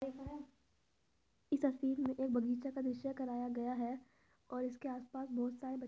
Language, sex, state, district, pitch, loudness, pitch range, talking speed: Hindi, female, Uttar Pradesh, Etah, 260 Hz, -40 LUFS, 245-270 Hz, 185 wpm